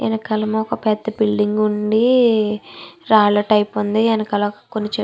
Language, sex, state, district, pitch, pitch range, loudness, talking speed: Telugu, female, Andhra Pradesh, Chittoor, 215 Hz, 210-220 Hz, -17 LUFS, 145 wpm